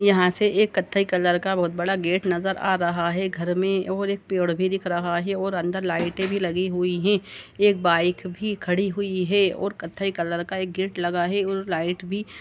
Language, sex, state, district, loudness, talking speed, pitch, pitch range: Hindi, male, Uttar Pradesh, Jalaun, -24 LUFS, 225 wpm, 185 Hz, 175-195 Hz